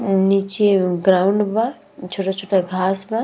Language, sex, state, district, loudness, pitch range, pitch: Bhojpuri, female, Bihar, Gopalganj, -18 LUFS, 190-205 Hz, 195 Hz